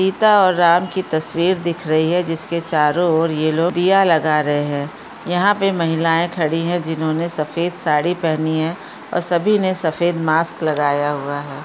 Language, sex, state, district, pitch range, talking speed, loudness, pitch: Hindi, female, Uttar Pradesh, Gorakhpur, 155-175 Hz, 180 wpm, -17 LUFS, 165 Hz